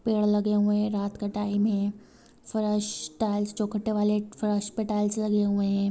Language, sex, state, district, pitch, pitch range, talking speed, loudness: Hindi, female, Bihar, Gopalganj, 210 Hz, 205-210 Hz, 180 wpm, -27 LUFS